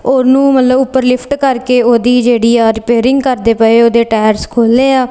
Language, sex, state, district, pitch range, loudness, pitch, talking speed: Punjabi, female, Punjab, Kapurthala, 235-260 Hz, -10 LUFS, 245 Hz, 175 wpm